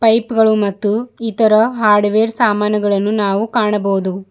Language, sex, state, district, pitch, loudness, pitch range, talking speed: Kannada, female, Karnataka, Bidar, 215 Hz, -15 LUFS, 205-225 Hz, 110 wpm